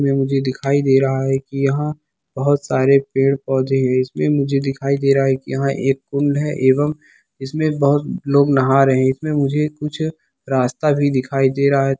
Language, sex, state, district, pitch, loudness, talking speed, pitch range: Hindi, male, Bihar, Samastipur, 135 Hz, -18 LUFS, 185 wpm, 135-145 Hz